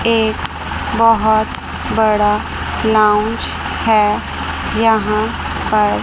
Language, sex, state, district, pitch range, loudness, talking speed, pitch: Hindi, female, Chandigarh, Chandigarh, 210-225 Hz, -16 LUFS, 70 wpm, 220 Hz